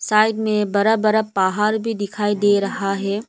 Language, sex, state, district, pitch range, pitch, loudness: Hindi, female, Arunachal Pradesh, Lower Dibang Valley, 200-215 Hz, 210 Hz, -19 LUFS